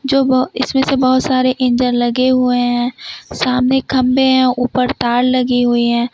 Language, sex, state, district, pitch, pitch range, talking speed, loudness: Hindi, female, Uttar Pradesh, Lucknow, 255 Hz, 245-260 Hz, 165 wpm, -14 LUFS